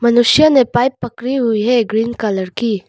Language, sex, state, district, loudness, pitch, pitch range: Hindi, female, Arunachal Pradesh, Longding, -14 LUFS, 235 Hz, 220-250 Hz